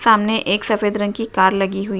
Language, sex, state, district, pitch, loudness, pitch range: Hindi, female, Uttar Pradesh, Jalaun, 205 Hz, -18 LUFS, 195-220 Hz